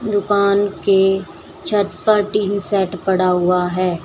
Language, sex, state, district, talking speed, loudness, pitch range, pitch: Hindi, female, Uttar Pradesh, Shamli, 135 wpm, -17 LUFS, 185-205 Hz, 195 Hz